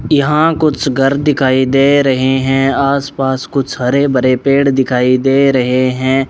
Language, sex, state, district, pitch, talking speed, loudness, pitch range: Hindi, male, Rajasthan, Bikaner, 135 Hz, 160 wpm, -12 LUFS, 130-140 Hz